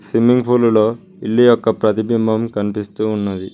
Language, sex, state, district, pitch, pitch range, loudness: Telugu, male, Telangana, Mahabubabad, 110 Hz, 105-115 Hz, -16 LUFS